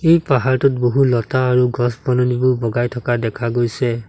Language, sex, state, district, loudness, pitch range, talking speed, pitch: Assamese, male, Assam, Sonitpur, -17 LUFS, 120-130 Hz, 160 wpm, 125 Hz